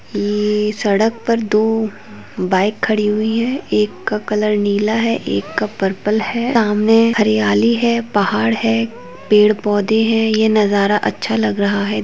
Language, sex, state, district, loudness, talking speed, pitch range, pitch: Hindi, female, Uttarakhand, Tehri Garhwal, -16 LUFS, 170 wpm, 205-225 Hz, 210 Hz